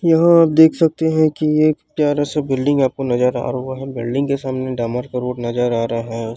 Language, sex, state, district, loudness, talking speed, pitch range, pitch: Chhattisgarhi, female, Chhattisgarh, Rajnandgaon, -17 LUFS, 235 wpm, 125-155 Hz, 135 Hz